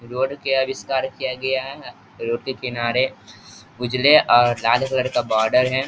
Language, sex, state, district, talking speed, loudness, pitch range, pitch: Hindi, male, Bihar, East Champaran, 165 wpm, -20 LUFS, 120-135 Hz, 130 Hz